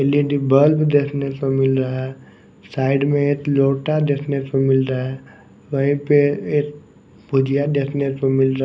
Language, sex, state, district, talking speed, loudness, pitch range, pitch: Hindi, male, Bihar, West Champaran, 175 wpm, -19 LUFS, 135-145 Hz, 140 Hz